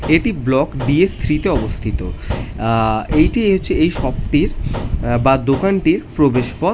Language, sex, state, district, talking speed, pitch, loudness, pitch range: Bengali, male, West Bengal, North 24 Parganas, 150 wpm, 130 Hz, -17 LUFS, 110-155 Hz